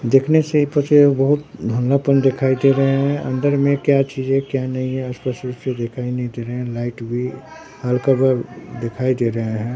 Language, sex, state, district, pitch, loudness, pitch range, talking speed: Hindi, male, Bihar, Katihar, 130 Hz, -19 LUFS, 125-140 Hz, 195 wpm